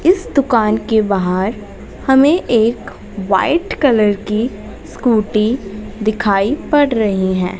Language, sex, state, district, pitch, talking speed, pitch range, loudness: Hindi, female, Haryana, Jhajjar, 215 Hz, 110 wpm, 200-245 Hz, -15 LUFS